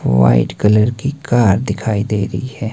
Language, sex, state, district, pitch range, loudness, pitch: Hindi, male, Himachal Pradesh, Shimla, 100-120 Hz, -15 LUFS, 105 Hz